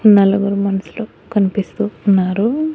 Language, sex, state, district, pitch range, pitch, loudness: Telugu, female, Andhra Pradesh, Annamaya, 195-215 Hz, 200 Hz, -16 LUFS